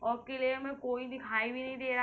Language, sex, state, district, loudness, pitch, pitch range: Hindi, female, Uttar Pradesh, Hamirpur, -35 LUFS, 255 Hz, 245-260 Hz